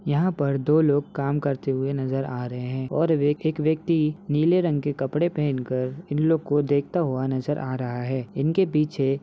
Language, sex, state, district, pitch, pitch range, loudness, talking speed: Hindi, male, Uttar Pradesh, Ghazipur, 145 Hz, 135-155 Hz, -24 LUFS, 210 wpm